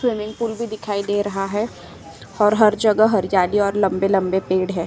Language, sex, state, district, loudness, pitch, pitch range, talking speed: Hindi, female, Uttar Pradesh, Etah, -19 LUFS, 205 Hz, 195-215 Hz, 185 wpm